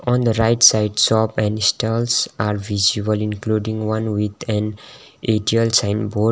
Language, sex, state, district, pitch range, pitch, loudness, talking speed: English, male, Sikkim, Gangtok, 105-115 Hz, 110 Hz, -18 LUFS, 150 wpm